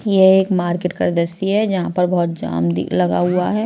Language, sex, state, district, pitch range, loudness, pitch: Hindi, female, Maharashtra, Washim, 165-190 Hz, -17 LUFS, 180 Hz